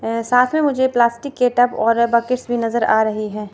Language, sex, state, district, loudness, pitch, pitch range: Hindi, female, Chandigarh, Chandigarh, -17 LUFS, 235 Hz, 230-250 Hz